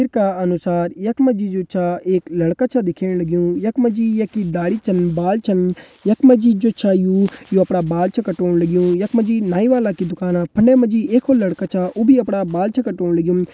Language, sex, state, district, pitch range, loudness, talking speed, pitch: Hindi, male, Uttarakhand, Uttarkashi, 180-225 Hz, -17 LUFS, 240 wpm, 190 Hz